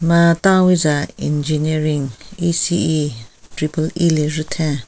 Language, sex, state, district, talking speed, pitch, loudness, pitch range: Rengma, female, Nagaland, Kohima, 110 wpm, 155 Hz, -17 LUFS, 150-170 Hz